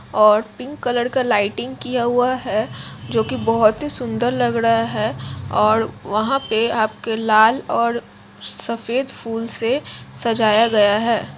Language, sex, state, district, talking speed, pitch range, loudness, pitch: Hindi, female, Jharkhand, Jamtara, 135 wpm, 220-245 Hz, -19 LUFS, 230 Hz